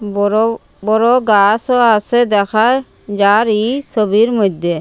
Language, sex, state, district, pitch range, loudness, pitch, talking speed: Bengali, female, Assam, Hailakandi, 205-235 Hz, -13 LUFS, 215 Hz, 110 wpm